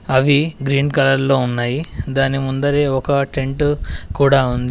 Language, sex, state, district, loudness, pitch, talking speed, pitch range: Telugu, male, Telangana, Adilabad, -17 LUFS, 135 Hz, 140 wpm, 135-145 Hz